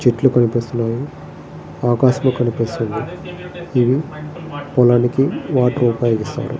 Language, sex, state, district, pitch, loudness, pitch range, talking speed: Telugu, male, Andhra Pradesh, Srikakulam, 125 Hz, -17 LUFS, 120-145 Hz, 75 wpm